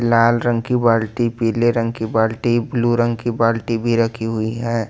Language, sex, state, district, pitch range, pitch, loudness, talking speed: Hindi, male, Jharkhand, Ranchi, 115-120 Hz, 115 Hz, -18 LUFS, 195 wpm